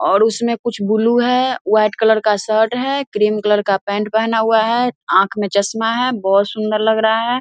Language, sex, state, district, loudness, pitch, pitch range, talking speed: Hindi, female, Bihar, Vaishali, -16 LUFS, 220 Hz, 210-235 Hz, 210 wpm